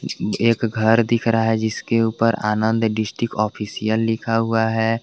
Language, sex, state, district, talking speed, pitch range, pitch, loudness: Hindi, male, Jharkhand, Garhwa, 155 wpm, 110-115 Hz, 115 Hz, -20 LUFS